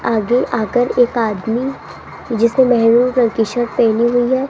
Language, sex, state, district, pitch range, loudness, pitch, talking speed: Hindi, female, Rajasthan, Jaipur, 230-245 Hz, -15 LUFS, 240 Hz, 160 wpm